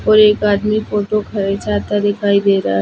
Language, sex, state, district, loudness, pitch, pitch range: Hindi, female, Chhattisgarh, Jashpur, -15 LUFS, 205 Hz, 200-210 Hz